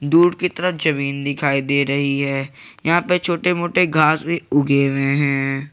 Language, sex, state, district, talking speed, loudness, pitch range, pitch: Hindi, male, Jharkhand, Garhwa, 180 wpm, -18 LUFS, 140-170 Hz, 145 Hz